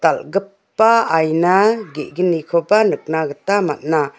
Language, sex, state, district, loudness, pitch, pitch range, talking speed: Garo, female, Meghalaya, West Garo Hills, -17 LUFS, 180 Hz, 160-200 Hz, 85 wpm